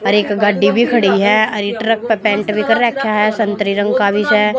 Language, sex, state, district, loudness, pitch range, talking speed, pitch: Hindi, female, Haryana, Jhajjar, -14 LUFS, 205-220 Hz, 250 wpm, 210 Hz